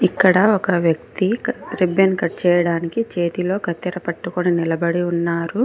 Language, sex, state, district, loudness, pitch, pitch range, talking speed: Telugu, female, Telangana, Mahabubabad, -19 LUFS, 175 Hz, 170-190 Hz, 115 wpm